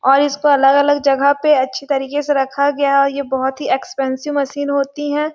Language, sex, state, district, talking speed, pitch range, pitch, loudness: Hindi, female, Chhattisgarh, Sarguja, 145 wpm, 270-290 Hz, 280 Hz, -16 LUFS